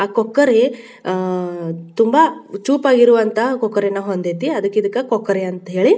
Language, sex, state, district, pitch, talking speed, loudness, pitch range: Kannada, female, Karnataka, Bijapur, 215 Hz, 140 wpm, -17 LUFS, 185-245 Hz